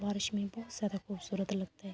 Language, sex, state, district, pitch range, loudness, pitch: Urdu, female, Andhra Pradesh, Anantapur, 195-205 Hz, -37 LUFS, 200 Hz